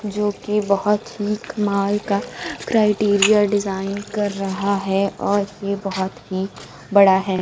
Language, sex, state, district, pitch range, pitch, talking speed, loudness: Hindi, female, Bihar, Kaimur, 195-210 Hz, 200 Hz, 135 wpm, -20 LUFS